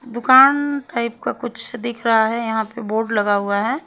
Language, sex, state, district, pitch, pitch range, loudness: Hindi, female, Haryana, Rohtak, 235 Hz, 220-250 Hz, -18 LUFS